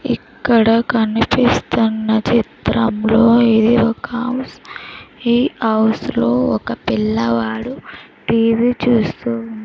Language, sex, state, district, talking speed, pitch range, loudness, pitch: Telugu, female, Andhra Pradesh, Sri Satya Sai, 95 wpm, 220-235 Hz, -16 LUFS, 225 Hz